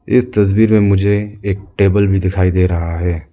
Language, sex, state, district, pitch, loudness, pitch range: Hindi, male, Arunachal Pradesh, Lower Dibang Valley, 100 Hz, -14 LUFS, 90-105 Hz